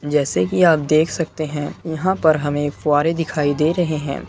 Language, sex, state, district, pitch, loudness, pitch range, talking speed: Hindi, male, Uttar Pradesh, Muzaffarnagar, 155 Hz, -19 LUFS, 145-165 Hz, 195 wpm